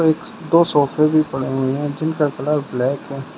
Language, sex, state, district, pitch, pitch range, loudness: Hindi, male, Uttar Pradesh, Shamli, 145 Hz, 135-155 Hz, -19 LUFS